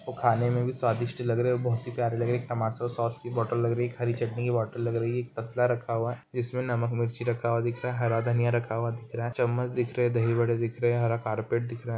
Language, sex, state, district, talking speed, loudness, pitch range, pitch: Hindi, male, West Bengal, Jalpaiguri, 285 wpm, -28 LUFS, 115-120 Hz, 120 Hz